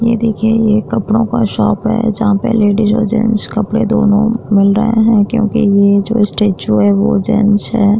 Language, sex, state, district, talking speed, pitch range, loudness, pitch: Hindi, female, Bihar, Vaishali, 185 wpm, 205-225 Hz, -12 LUFS, 215 Hz